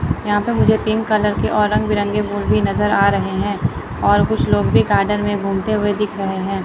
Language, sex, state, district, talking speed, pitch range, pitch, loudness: Hindi, female, Chandigarh, Chandigarh, 235 wpm, 195-210 Hz, 205 Hz, -17 LUFS